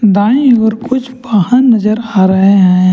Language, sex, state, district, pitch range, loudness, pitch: Hindi, male, Jharkhand, Ranchi, 195-250 Hz, -10 LUFS, 220 Hz